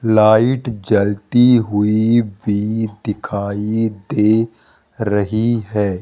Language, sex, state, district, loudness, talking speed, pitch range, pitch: Hindi, male, Rajasthan, Jaipur, -16 LUFS, 80 wpm, 105-115 Hz, 110 Hz